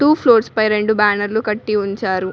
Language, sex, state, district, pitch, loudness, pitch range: Telugu, female, Telangana, Mahabubabad, 215 Hz, -16 LUFS, 205-220 Hz